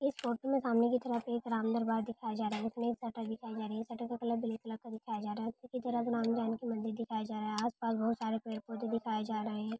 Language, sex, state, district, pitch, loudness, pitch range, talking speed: Hindi, female, Uttar Pradesh, Hamirpur, 230 Hz, -36 LUFS, 220-235 Hz, 305 wpm